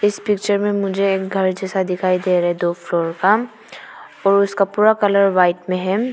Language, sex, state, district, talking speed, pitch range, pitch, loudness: Hindi, female, Arunachal Pradesh, Papum Pare, 205 wpm, 185-205 Hz, 195 Hz, -18 LUFS